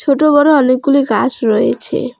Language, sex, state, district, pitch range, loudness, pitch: Bengali, female, West Bengal, Alipurduar, 250-285 Hz, -12 LUFS, 275 Hz